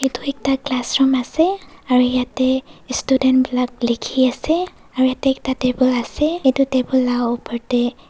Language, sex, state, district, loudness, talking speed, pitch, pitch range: Nagamese, female, Nagaland, Dimapur, -19 LUFS, 155 wpm, 260 Hz, 250-270 Hz